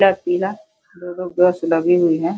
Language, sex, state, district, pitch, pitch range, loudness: Hindi, female, Uttar Pradesh, Deoria, 180 Hz, 175-190 Hz, -18 LUFS